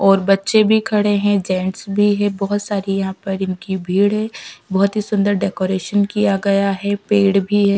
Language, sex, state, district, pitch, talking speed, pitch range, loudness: Hindi, female, Bihar, Patna, 200 Hz, 195 wpm, 195-205 Hz, -17 LUFS